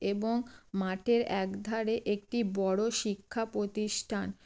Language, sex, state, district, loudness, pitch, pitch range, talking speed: Bengali, female, West Bengal, Jalpaiguri, -32 LUFS, 210 Hz, 195-225 Hz, 105 wpm